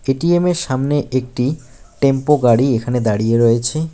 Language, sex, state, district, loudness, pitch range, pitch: Bengali, male, West Bengal, Alipurduar, -16 LUFS, 120-145 Hz, 130 Hz